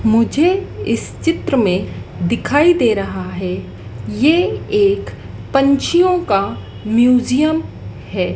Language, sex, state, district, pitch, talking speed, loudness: Hindi, female, Madhya Pradesh, Dhar, 255 Hz, 100 wpm, -16 LUFS